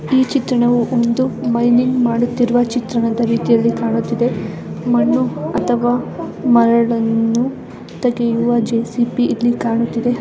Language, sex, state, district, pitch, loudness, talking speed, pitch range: Kannada, female, Karnataka, Dakshina Kannada, 240 Hz, -16 LUFS, 95 wpm, 235-245 Hz